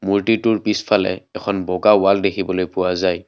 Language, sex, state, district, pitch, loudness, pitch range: Assamese, male, Assam, Kamrup Metropolitan, 95 Hz, -18 LUFS, 90-105 Hz